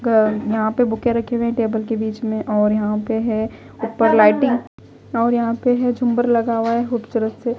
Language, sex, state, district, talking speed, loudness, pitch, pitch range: Hindi, female, Delhi, New Delhi, 200 wpm, -19 LUFS, 230 Hz, 220-240 Hz